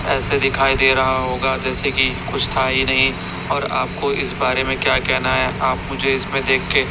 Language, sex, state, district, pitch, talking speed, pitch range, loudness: Hindi, male, Chhattisgarh, Raipur, 135 Hz, 210 wpm, 130-135 Hz, -18 LUFS